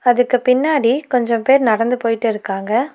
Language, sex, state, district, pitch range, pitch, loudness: Tamil, female, Tamil Nadu, Nilgiris, 230-255 Hz, 245 Hz, -16 LUFS